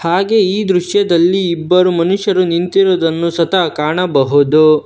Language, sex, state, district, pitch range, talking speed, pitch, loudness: Kannada, male, Karnataka, Bangalore, 165-190 Hz, 100 wpm, 175 Hz, -13 LUFS